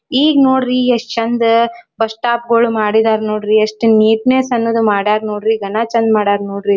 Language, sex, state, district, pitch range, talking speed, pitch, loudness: Kannada, female, Karnataka, Dharwad, 215-240 Hz, 160 wpm, 225 Hz, -14 LUFS